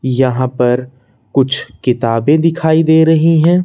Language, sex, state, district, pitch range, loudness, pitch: Hindi, male, Madhya Pradesh, Bhopal, 125-160 Hz, -13 LUFS, 130 Hz